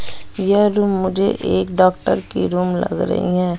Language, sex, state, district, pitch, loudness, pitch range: Hindi, female, Bihar, West Champaran, 185 Hz, -18 LUFS, 175-195 Hz